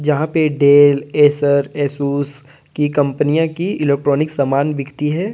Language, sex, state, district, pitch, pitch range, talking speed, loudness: Hindi, male, Jharkhand, Deoghar, 145 Hz, 140-150 Hz, 135 wpm, -16 LUFS